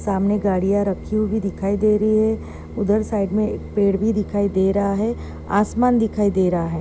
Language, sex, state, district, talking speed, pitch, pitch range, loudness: Hindi, female, Maharashtra, Chandrapur, 200 wpm, 205 Hz, 195-215 Hz, -20 LUFS